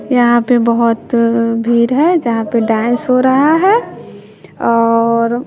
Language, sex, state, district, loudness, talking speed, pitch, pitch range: Hindi, female, Bihar, West Champaran, -12 LUFS, 130 wpm, 235 Hz, 230-255 Hz